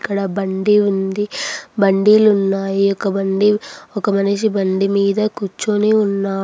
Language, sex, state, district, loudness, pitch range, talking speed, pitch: Telugu, female, Andhra Pradesh, Anantapur, -16 LUFS, 195-210 Hz, 120 wpm, 200 Hz